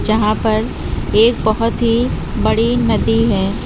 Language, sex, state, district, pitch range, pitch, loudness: Hindi, female, Uttar Pradesh, Lucknow, 215-230 Hz, 225 Hz, -16 LUFS